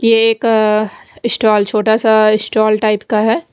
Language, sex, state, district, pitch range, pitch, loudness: Hindi, female, Bihar, West Champaran, 215-225 Hz, 215 Hz, -13 LUFS